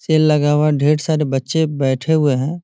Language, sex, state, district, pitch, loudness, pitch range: Hindi, male, Bihar, Gopalganj, 150 Hz, -16 LUFS, 140-155 Hz